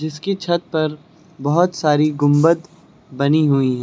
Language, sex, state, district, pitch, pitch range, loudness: Hindi, male, Uttar Pradesh, Lucknow, 155 Hz, 145-170 Hz, -18 LUFS